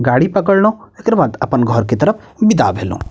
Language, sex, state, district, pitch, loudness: Maithili, male, Bihar, Purnia, 165 Hz, -14 LUFS